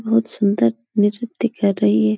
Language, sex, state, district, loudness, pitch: Hindi, female, Uttar Pradesh, Etah, -19 LUFS, 205 Hz